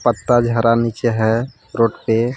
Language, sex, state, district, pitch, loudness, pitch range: Hindi, male, Jharkhand, Palamu, 115 Hz, -17 LUFS, 115-120 Hz